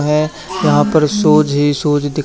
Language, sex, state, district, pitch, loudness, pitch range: Hindi, male, Haryana, Charkhi Dadri, 150 Hz, -14 LUFS, 145-155 Hz